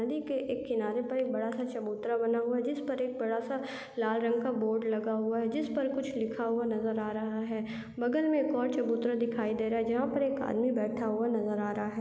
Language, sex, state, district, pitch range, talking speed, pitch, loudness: Hindi, female, Chhattisgarh, Raigarh, 225-255 Hz, 245 wpm, 235 Hz, -32 LUFS